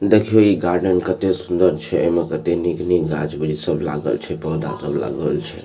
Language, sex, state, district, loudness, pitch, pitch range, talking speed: Maithili, male, Bihar, Supaul, -19 LUFS, 90 Hz, 80-95 Hz, 190 wpm